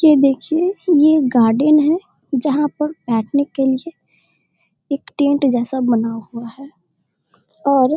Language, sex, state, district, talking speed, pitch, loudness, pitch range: Hindi, female, Bihar, Darbhanga, 145 wpm, 280 Hz, -17 LUFS, 255-305 Hz